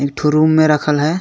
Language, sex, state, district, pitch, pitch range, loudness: Sadri, male, Chhattisgarh, Jashpur, 150 Hz, 150-155 Hz, -14 LUFS